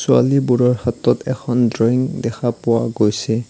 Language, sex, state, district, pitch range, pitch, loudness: Assamese, male, Assam, Kamrup Metropolitan, 115-125 Hz, 120 Hz, -17 LUFS